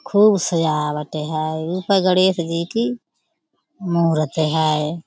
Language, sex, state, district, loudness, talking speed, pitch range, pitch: Hindi, female, Uttar Pradesh, Budaun, -19 LUFS, 120 wpm, 155-190 Hz, 170 Hz